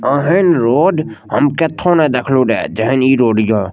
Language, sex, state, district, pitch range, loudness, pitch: Maithili, male, Bihar, Madhepura, 115-160 Hz, -13 LUFS, 135 Hz